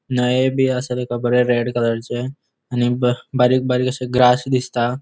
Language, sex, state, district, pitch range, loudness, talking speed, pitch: Konkani, male, Goa, North and South Goa, 120-130 Hz, -18 LUFS, 145 wpm, 125 Hz